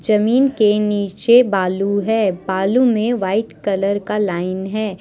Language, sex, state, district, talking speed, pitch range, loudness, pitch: Hindi, male, Jharkhand, Deoghar, 145 wpm, 195-220 Hz, -17 LUFS, 210 Hz